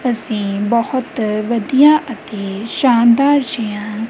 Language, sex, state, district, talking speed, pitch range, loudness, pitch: Punjabi, female, Punjab, Kapurthala, 90 wpm, 215-255 Hz, -15 LUFS, 230 Hz